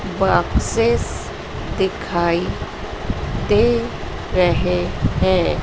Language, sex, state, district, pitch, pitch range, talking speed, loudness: Hindi, female, Madhya Pradesh, Dhar, 205 Hz, 175-230 Hz, 55 wpm, -20 LUFS